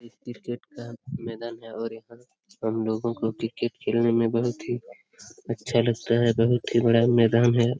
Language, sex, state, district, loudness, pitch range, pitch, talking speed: Hindi, male, Bihar, Lakhisarai, -25 LUFS, 115-120 Hz, 115 Hz, 175 wpm